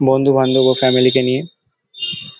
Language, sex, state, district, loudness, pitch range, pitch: Bengali, male, West Bengal, Dakshin Dinajpur, -15 LUFS, 130-135 Hz, 130 Hz